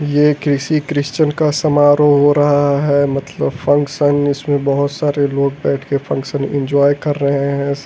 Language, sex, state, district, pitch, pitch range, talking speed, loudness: Hindi, male, Delhi, New Delhi, 145 Hz, 140-145 Hz, 160 wpm, -15 LUFS